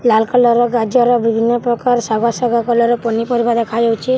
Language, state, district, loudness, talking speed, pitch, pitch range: Sambalpuri, Odisha, Sambalpur, -14 LUFS, 245 wpm, 235 Hz, 230-240 Hz